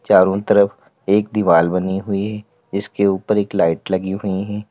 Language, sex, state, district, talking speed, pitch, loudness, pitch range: Hindi, male, Uttar Pradesh, Lalitpur, 165 wpm, 100 Hz, -18 LUFS, 95-105 Hz